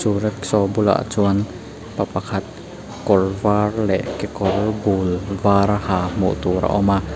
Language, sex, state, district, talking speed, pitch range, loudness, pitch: Mizo, male, Mizoram, Aizawl, 150 wpm, 95-105 Hz, -20 LUFS, 100 Hz